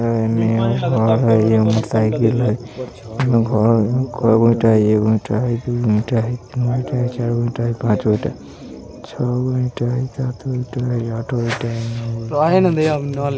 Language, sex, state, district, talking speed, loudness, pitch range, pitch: Bajjika, male, Bihar, Vaishali, 190 wpm, -18 LUFS, 115-125 Hz, 120 Hz